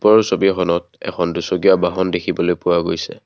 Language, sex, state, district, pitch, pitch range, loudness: Assamese, male, Assam, Kamrup Metropolitan, 90 Hz, 85-95 Hz, -17 LUFS